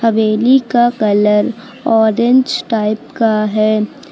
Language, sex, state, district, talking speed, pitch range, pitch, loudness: Hindi, female, Uttar Pradesh, Lucknow, 100 wpm, 215-245 Hz, 225 Hz, -13 LUFS